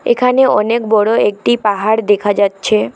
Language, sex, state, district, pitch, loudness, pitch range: Bengali, female, West Bengal, Alipurduar, 215 Hz, -13 LUFS, 205-235 Hz